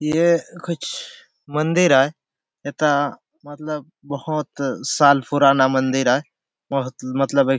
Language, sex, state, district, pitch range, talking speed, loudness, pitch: Halbi, male, Chhattisgarh, Bastar, 135-160 Hz, 120 wpm, -20 LUFS, 145 Hz